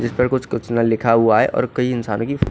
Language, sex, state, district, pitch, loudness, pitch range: Hindi, male, Odisha, Khordha, 120 Hz, -18 LUFS, 115-125 Hz